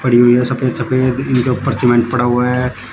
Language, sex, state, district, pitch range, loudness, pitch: Hindi, male, Uttar Pradesh, Shamli, 120-130 Hz, -14 LUFS, 125 Hz